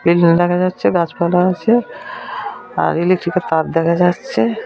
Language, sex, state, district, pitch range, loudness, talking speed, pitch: Bengali, female, West Bengal, Jalpaiguri, 170-185 Hz, -16 LUFS, 165 wpm, 175 Hz